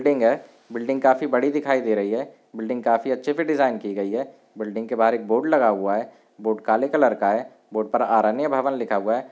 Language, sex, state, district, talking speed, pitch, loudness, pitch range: Hindi, male, Bihar, Samastipur, 240 wpm, 115 Hz, -22 LUFS, 110-135 Hz